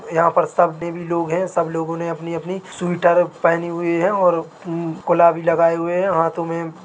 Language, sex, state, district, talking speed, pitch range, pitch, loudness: Hindi, male, Chhattisgarh, Bilaspur, 210 wpm, 165-175 Hz, 170 Hz, -19 LUFS